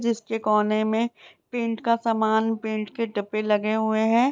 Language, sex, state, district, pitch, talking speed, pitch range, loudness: Hindi, female, Bihar, Begusarai, 220 Hz, 165 wpm, 215-230 Hz, -24 LUFS